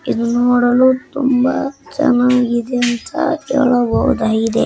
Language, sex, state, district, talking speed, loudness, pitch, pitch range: Kannada, male, Karnataka, Bijapur, 75 wpm, -15 LUFS, 245 Hz, 240-265 Hz